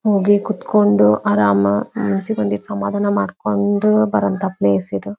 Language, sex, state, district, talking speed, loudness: Kannada, female, Karnataka, Belgaum, 115 wpm, -17 LUFS